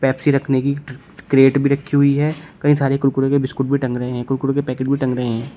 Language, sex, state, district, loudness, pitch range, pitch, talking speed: Hindi, male, Uttar Pradesh, Shamli, -18 LUFS, 130-140 Hz, 135 Hz, 260 wpm